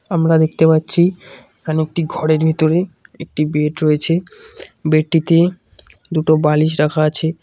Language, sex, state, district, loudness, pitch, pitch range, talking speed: Bengali, male, West Bengal, Cooch Behar, -16 LUFS, 160 Hz, 155-170 Hz, 120 wpm